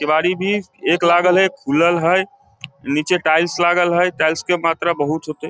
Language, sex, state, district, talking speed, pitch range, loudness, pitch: Maithili, male, Bihar, Samastipur, 195 wpm, 155-180 Hz, -17 LUFS, 175 Hz